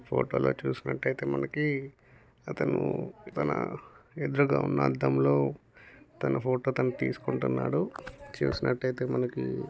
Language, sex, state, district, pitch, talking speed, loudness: Telugu, male, Telangana, Nalgonda, 70 Hz, 100 wpm, -30 LUFS